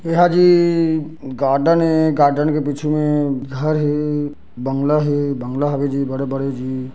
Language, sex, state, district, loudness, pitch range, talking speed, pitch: Chhattisgarhi, male, Chhattisgarh, Bilaspur, -18 LUFS, 135-155 Hz, 155 wpm, 145 Hz